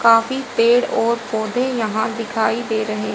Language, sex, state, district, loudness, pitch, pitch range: Hindi, female, Haryana, Rohtak, -19 LUFS, 230 Hz, 220-240 Hz